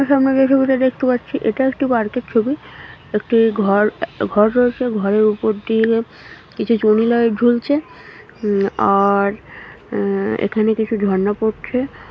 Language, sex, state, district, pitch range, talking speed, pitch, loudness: Bengali, female, West Bengal, North 24 Parganas, 210-250 Hz, 135 wpm, 225 Hz, -17 LUFS